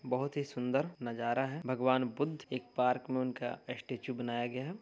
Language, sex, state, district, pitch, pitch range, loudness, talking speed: Hindi, male, Uttar Pradesh, Varanasi, 130 Hz, 125-135 Hz, -36 LUFS, 185 wpm